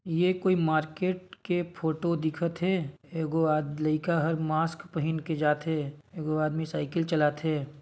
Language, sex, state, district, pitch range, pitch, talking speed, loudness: Chhattisgarhi, male, Chhattisgarh, Sarguja, 155-170 Hz, 160 Hz, 140 wpm, -29 LUFS